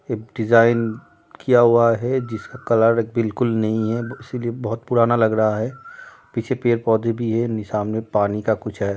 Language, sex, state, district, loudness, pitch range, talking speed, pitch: Hindi, male, Chhattisgarh, Raigarh, -20 LUFS, 110-120 Hz, 180 wpm, 115 Hz